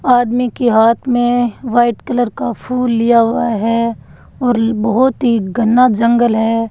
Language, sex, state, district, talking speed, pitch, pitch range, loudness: Hindi, female, Rajasthan, Bikaner, 150 wpm, 235 Hz, 230-245 Hz, -14 LUFS